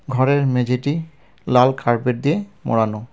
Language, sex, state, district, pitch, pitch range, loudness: Bengali, male, West Bengal, Cooch Behar, 125 Hz, 120-140 Hz, -19 LUFS